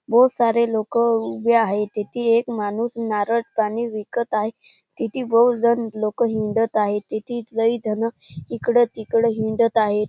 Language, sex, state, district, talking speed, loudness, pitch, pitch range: Marathi, male, Maharashtra, Chandrapur, 145 wpm, -21 LUFS, 225 Hz, 215-235 Hz